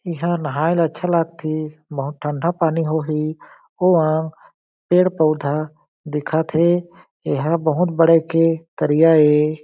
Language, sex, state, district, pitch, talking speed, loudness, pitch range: Chhattisgarhi, male, Chhattisgarh, Jashpur, 160 Hz, 125 wpm, -19 LUFS, 155-165 Hz